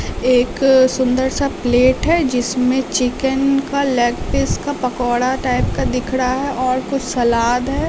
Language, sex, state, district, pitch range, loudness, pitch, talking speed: Hindi, female, Bihar, Katihar, 250-270 Hz, -17 LUFS, 255 Hz, 160 wpm